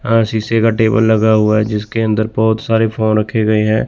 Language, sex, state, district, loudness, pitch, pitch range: Hindi, male, Chandigarh, Chandigarh, -14 LUFS, 110 Hz, 110-115 Hz